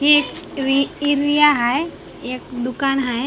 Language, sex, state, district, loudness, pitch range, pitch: Marathi, female, Maharashtra, Mumbai Suburban, -18 LUFS, 255-295 Hz, 275 Hz